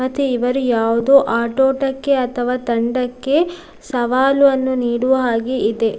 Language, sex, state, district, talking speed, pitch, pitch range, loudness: Kannada, female, Karnataka, Dakshina Kannada, 110 wpm, 255 Hz, 240-270 Hz, -17 LUFS